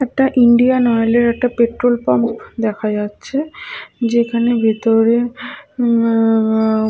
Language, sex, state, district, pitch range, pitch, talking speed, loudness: Bengali, female, West Bengal, Paschim Medinipur, 225-245 Hz, 235 Hz, 105 wpm, -15 LUFS